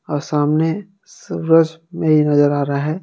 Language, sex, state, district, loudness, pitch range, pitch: Hindi, male, Jharkhand, Palamu, -17 LUFS, 145-165 Hz, 155 Hz